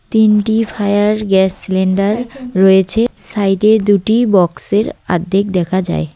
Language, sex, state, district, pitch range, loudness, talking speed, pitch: Bengali, female, West Bengal, Cooch Behar, 190-215 Hz, -14 LUFS, 105 wpm, 205 Hz